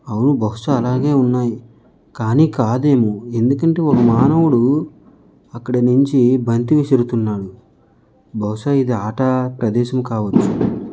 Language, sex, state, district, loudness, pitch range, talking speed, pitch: Telugu, male, Andhra Pradesh, Guntur, -16 LUFS, 115-135 Hz, 105 wpm, 125 Hz